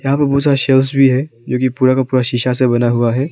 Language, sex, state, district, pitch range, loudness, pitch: Hindi, male, Arunachal Pradesh, Papum Pare, 125-135 Hz, -14 LUFS, 130 Hz